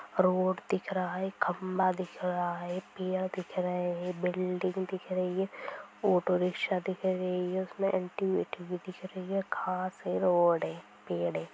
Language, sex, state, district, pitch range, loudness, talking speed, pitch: Hindi, female, Bihar, Sitamarhi, 180-185 Hz, -32 LUFS, 170 wpm, 185 Hz